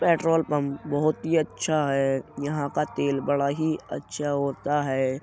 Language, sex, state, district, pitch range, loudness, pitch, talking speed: Hindi, male, Uttar Pradesh, Jyotiba Phule Nagar, 140-155 Hz, -26 LUFS, 145 Hz, 160 wpm